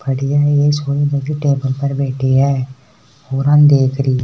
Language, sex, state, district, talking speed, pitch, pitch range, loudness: Hindi, male, Rajasthan, Nagaur, 140 wpm, 140 Hz, 130-145 Hz, -15 LUFS